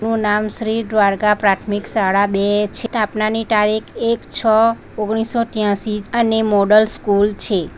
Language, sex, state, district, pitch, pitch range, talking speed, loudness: Gujarati, female, Gujarat, Valsad, 215 Hz, 205-225 Hz, 130 wpm, -17 LUFS